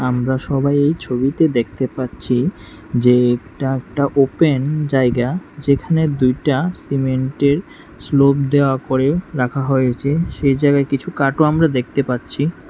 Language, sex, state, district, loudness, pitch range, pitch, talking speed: Bengali, male, Tripura, West Tripura, -17 LUFS, 130-145 Hz, 140 Hz, 125 wpm